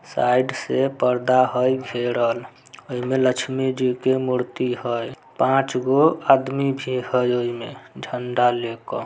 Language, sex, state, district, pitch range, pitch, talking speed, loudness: Maithili, male, Bihar, Samastipur, 125-130 Hz, 125 Hz, 140 wpm, -21 LUFS